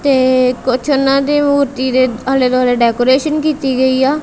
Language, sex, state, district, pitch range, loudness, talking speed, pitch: Punjabi, female, Punjab, Kapurthala, 255-280 Hz, -13 LUFS, 170 wpm, 260 Hz